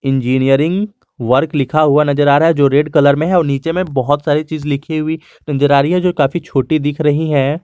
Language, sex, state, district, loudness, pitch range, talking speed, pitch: Hindi, male, Jharkhand, Garhwa, -14 LUFS, 140-160 Hz, 245 wpm, 145 Hz